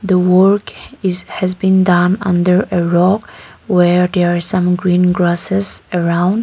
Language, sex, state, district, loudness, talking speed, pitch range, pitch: English, female, Nagaland, Kohima, -13 LUFS, 150 wpm, 175-190 Hz, 180 Hz